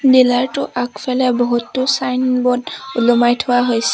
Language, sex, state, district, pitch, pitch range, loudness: Assamese, female, Assam, Sonitpur, 250 Hz, 240-260 Hz, -16 LUFS